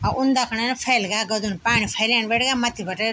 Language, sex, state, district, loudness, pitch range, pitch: Garhwali, female, Uttarakhand, Tehri Garhwal, -20 LUFS, 220-250 Hz, 230 Hz